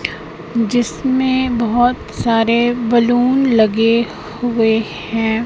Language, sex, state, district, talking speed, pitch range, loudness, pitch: Hindi, female, Madhya Pradesh, Katni, 75 wpm, 225-245 Hz, -16 LUFS, 235 Hz